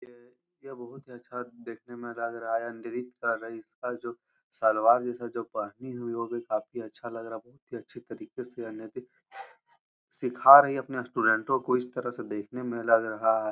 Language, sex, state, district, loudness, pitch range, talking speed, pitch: Hindi, male, Uttar Pradesh, Muzaffarnagar, -28 LUFS, 115-125 Hz, 205 wpm, 120 Hz